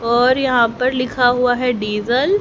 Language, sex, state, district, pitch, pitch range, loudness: Hindi, female, Haryana, Rohtak, 245 Hz, 230-250 Hz, -16 LUFS